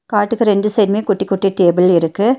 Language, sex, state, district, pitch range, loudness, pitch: Tamil, female, Tamil Nadu, Nilgiris, 190-210 Hz, -14 LUFS, 205 Hz